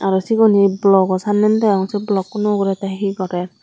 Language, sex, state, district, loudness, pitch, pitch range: Chakma, female, Tripura, Dhalai, -16 LUFS, 195 Hz, 190-210 Hz